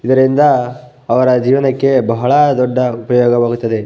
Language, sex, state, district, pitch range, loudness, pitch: Kannada, male, Karnataka, Bellary, 120-130 Hz, -13 LUFS, 125 Hz